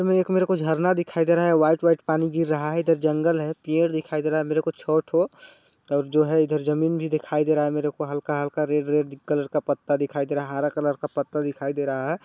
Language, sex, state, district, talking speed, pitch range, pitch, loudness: Hindi, male, Chhattisgarh, Balrampur, 275 wpm, 145-160 Hz, 155 Hz, -24 LUFS